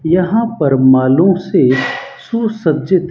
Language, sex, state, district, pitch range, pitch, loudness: Hindi, male, Rajasthan, Bikaner, 145-225 Hz, 180 Hz, -13 LUFS